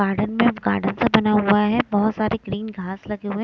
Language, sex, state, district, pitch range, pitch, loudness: Hindi, female, Himachal Pradesh, Shimla, 200-220 Hz, 210 Hz, -21 LUFS